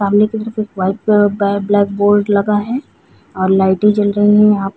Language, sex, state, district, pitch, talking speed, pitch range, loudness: Hindi, female, Chhattisgarh, Raigarh, 205 Hz, 190 wpm, 200-210 Hz, -14 LUFS